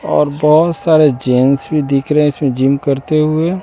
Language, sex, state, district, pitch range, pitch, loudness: Hindi, male, Bihar, West Champaran, 135-155 Hz, 150 Hz, -13 LUFS